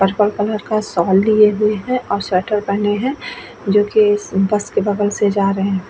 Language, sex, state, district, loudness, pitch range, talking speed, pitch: Hindi, female, Bihar, Vaishali, -16 LUFS, 200-215 Hz, 215 wpm, 205 Hz